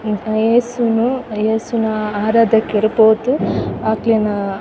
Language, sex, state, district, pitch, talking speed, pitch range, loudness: Tulu, female, Karnataka, Dakshina Kannada, 220 Hz, 80 wpm, 215-230 Hz, -16 LUFS